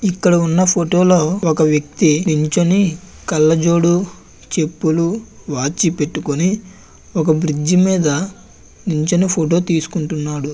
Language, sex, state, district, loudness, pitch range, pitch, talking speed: Telugu, male, Andhra Pradesh, Visakhapatnam, -16 LUFS, 155-180 Hz, 170 Hz, 95 wpm